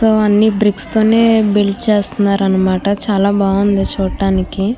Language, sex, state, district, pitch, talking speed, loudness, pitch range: Telugu, female, Andhra Pradesh, Krishna, 200 Hz, 100 wpm, -14 LUFS, 195-215 Hz